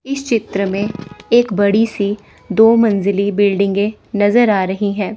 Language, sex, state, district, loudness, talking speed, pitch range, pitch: Hindi, female, Chandigarh, Chandigarh, -15 LUFS, 150 wpm, 200-225 Hz, 205 Hz